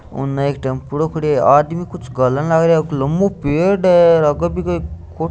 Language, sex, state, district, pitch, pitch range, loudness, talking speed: Hindi, male, Rajasthan, Churu, 155 Hz, 140-170 Hz, -16 LUFS, 180 wpm